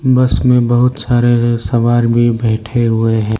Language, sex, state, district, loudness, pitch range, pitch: Hindi, male, Arunachal Pradesh, Lower Dibang Valley, -13 LUFS, 115-120 Hz, 120 Hz